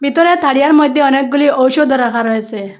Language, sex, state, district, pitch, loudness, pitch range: Bengali, female, Assam, Hailakandi, 275 Hz, -12 LUFS, 240-290 Hz